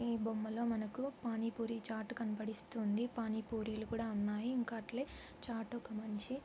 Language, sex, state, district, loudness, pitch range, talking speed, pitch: Telugu, female, Andhra Pradesh, Anantapur, -41 LUFS, 220-235 Hz, 160 wpm, 225 Hz